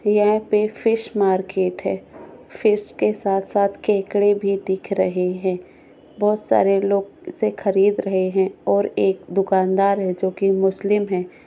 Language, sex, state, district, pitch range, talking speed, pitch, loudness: Hindi, female, Goa, North and South Goa, 190-205 Hz, 145 wpm, 195 Hz, -20 LUFS